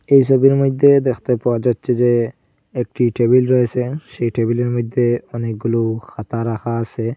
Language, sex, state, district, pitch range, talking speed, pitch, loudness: Bengali, male, Assam, Hailakandi, 115-130 Hz, 150 wpm, 120 Hz, -17 LUFS